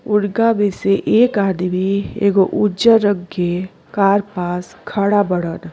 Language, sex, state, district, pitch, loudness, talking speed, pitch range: Bhojpuri, female, Uttar Pradesh, Deoria, 195 Hz, -17 LUFS, 135 wpm, 180-205 Hz